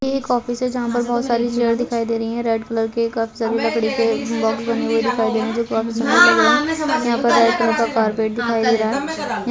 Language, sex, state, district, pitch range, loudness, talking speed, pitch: Hindi, female, Chhattisgarh, Bilaspur, 225-240 Hz, -18 LUFS, 270 wpm, 235 Hz